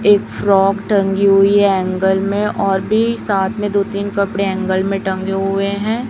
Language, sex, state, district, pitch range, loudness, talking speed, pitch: Hindi, female, Chhattisgarh, Raipur, 195-205 Hz, -16 LUFS, 175 wpm, 200 Hz